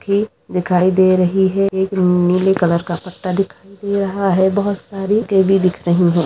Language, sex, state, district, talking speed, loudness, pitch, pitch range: Hindi, female, Uttar Pradesh, Jalaun, 180 wpm, -16 LUFS, 190 Hz, 180-195 Hz